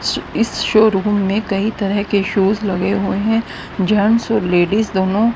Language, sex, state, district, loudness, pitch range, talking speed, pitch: Hindi, female, Haryana, Rohtak, -16 LUFS, 195-220 Hz, 155 wpm, 205 Hz